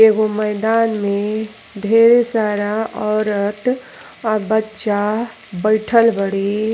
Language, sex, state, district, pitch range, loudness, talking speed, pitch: Bhojpuri, female, Uttar Pradesh, Ghazipur, 210-225 Hz, -17 LUFS, 90 wpm, 215 Hz